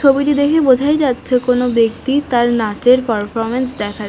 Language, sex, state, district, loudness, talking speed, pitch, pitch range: Bengali, female, West Bengal, North 24 Parganas, -15 LUFS, 160 wpm, 250 Hz, 225-275 Hz